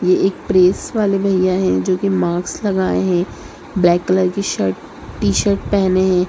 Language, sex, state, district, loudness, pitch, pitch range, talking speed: Hindi, female, Bihar, Sitamarhi, -17 LUFS, 185 Hz, 175-190 Hz, 170 wpm